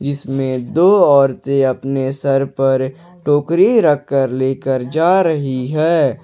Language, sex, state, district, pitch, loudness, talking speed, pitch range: Hindi, male, Jharkhand, Ranchi, 135 Hz, -15 LUFS, 115 wpm, 130-150 Hz